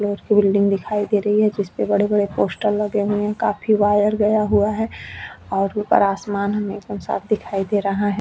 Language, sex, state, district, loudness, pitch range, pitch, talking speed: Hindi, female, Chhattisgarh, Bastar, -20 LUFS, 200-210 Hz, 205 Hz, 190 wpm